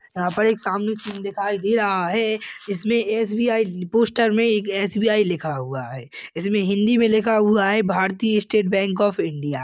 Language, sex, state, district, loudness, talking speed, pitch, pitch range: Hindi, male, Chhattisgarh, Balrampur, -20 LUFS, 195 wpm, 205 Hz, 190-220 Hz